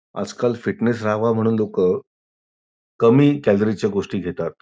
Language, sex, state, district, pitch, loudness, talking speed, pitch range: Marathi, male, Maharashtra, Pune, 115 Hz, -20 LUFS, 130 wpm, 110-120 Hz